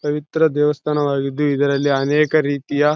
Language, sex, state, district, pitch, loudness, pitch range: Kannada, male, Karnataka, Bellary, 145 Hz, -18 LUFS, 140-150 Hz